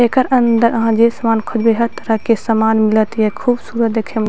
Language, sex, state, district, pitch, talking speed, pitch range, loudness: Maithili, female, Bihar, Purnia, 230 Hz, 235 wpm, 220-235 Hz, -15 LUFS